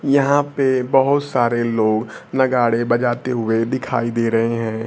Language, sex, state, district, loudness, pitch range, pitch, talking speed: Hindi, male, Bihar, Kaimur, -18 LUFS, 115-135 Hz, 120 Hz, 145 wpm